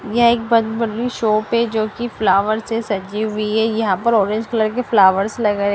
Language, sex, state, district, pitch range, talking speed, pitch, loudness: Hindi, female, Punjab, Fazilka, 210-230 Hz, 200 wpm, 220 Hz, -18 LUFS